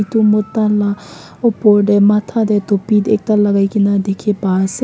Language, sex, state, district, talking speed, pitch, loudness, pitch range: Nagamese, female, Nagaland, Kohima, 160 wpm, 205 Hz, -14 LUFS, 200-215 Hz